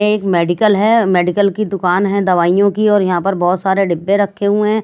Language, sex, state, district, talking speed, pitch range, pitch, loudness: Hindi, female, Bihar, West Champaran, 225 wpm, 180-205 Hz, 200 Hz, -14 LUFS